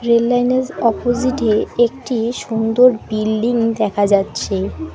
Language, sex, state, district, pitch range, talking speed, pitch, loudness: Bengali, female, West Bengal, Alipurduar, 215-245 Hz, 110 wpm, 230 Hz, -17 LUFS